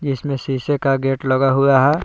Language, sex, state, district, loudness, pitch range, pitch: Hindi, male, Jharkhand, Palamu, -17 LUFS, 135-140 Hz, 135 Hz